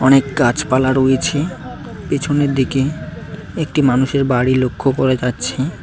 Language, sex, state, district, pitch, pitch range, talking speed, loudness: Bengali, male, West Bengal, Cooch Behar, 135 Hz, 130-145 Hz, 115 wpm, -16 LUFS